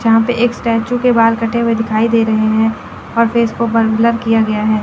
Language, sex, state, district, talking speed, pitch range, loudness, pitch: Hindi, female, Chandigarh, Chandigarh, 250 wpm, 220-235 Hz, -14 LUFS, 230 Hz